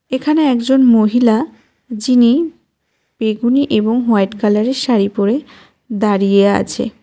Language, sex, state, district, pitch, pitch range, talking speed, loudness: Bengali, female, West Bengal, Cooch Behar, 235 Hz, 215-260 Hz, 100 wpm, -14 LUFS